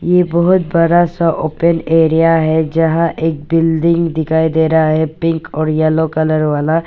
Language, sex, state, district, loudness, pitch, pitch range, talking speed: Hindi, female, Arunachal Pradesh, Papum Pare, -13 LUFS, 160 Hz, 160-165 Hz, 165 wpm